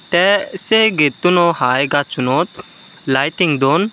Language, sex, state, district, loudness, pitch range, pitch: Chakma, male, Tripura, Unakoti, -15 LUFS, 140-185 Hz, 175 Hz